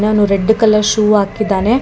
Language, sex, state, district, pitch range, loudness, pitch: Kannada, female, Karnataka, Bangalore, 205-220 Hz, -13 LUFS, 210 Hz